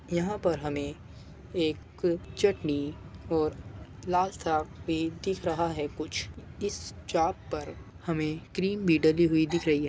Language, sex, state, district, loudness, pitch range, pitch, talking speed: Hindi, male, Uttar Pradesh, Muzaffarnagar, -30 LUFS, 155-175 Hz, 160 Hz, 145 wpm